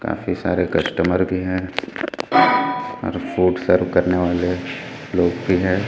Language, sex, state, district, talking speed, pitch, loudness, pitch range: Hindi, male, Chhattisgarh, Raipur, 135 wpm, 90 Hz, -20 LUFS, 90-95 Hz